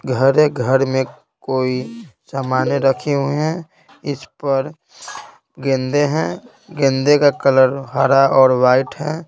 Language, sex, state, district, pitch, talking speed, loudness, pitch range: Hindi, male, Bihar, Patna, 135 Hz, 125 wpm, -17 LUFS, 130-145 Hz